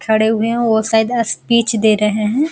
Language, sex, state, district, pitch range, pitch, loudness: Hindi, female, Bihar, Araria, 220-235 Hz, 220 Hz, -15 LUFS